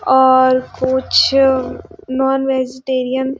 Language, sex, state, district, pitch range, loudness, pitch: Hindi, female, Chhattisgarh, Sarguja, 260-265 Hz, -15 LUFS, 260 Hz